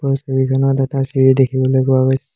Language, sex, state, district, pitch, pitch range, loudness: Assamese, male, Assam, Hailakandi, 135 Hz, 130-135 Hz, -15 LUFS